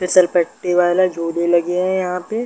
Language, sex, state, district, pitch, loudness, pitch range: Hindi, male, Bihar, Darbhanga, 180 Hz, -17 LUFS, 175-185 Hz